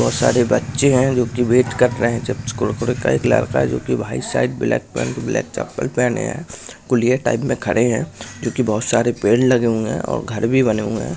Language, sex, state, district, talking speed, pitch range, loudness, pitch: Hindi, male, Bihar, Purnia, 240 wpm, 115-125 Hz, -18 LUFS, 120 Hz